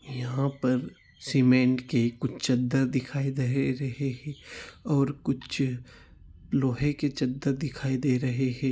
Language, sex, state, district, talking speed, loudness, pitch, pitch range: Hindi, male, Chhattisgarh, Sukma, 135 wpm, -27 LUFS, 130 Hz, 125-140 Hz